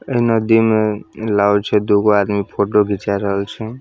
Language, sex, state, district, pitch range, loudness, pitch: Maithili, male, Bihar, Samastipur, 100-110 Hz, -16 LUFS, 105 Hz